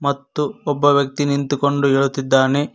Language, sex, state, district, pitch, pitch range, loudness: Kannada, male, Karnataka, Koppal, 140 Hz, 140-145 Hz, -18 LUFS